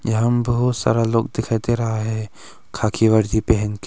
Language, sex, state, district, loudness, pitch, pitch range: Hindi, male, Arunachal Pradesh, Longding, -20 LUFS, 110 Hz, 110-115 Hz